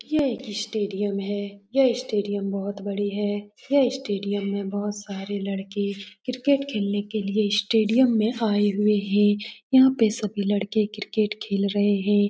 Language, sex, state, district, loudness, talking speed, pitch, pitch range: Hindi, female, Bihar, Saran, -24 LUFS, 155 wpm, 205 Hz, 200-220 Hz